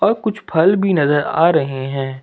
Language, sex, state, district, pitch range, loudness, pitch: Hindi, male, Jharkhand, Ranchi, 135-195 Hz, -16 LUFS, 160 Hz